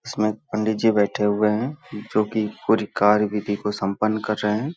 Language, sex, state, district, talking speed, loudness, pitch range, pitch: Hindi, male, Uttar Pradesh, Hamirpur, 200 wpm, -22 LUFS, 105-110 Hz, 105 Hz